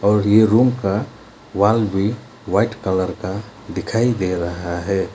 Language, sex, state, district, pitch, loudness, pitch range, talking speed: Hindi, male, West Bengal, Alipurduar, 105 Hz, -19 LUFS, 95-110 Hz, 150 wpm